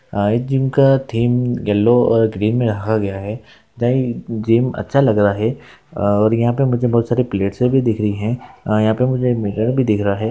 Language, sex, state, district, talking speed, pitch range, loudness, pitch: Hindi, male, West Bengal, Malda, 235 wpm, 105-125 Hz, -17 LUFS, 115 Hz